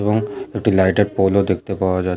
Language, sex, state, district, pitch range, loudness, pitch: Bengali, male, West Bengal, Paschim Medinipur, 95-105 Hz, -18 LUFS, 100 Hz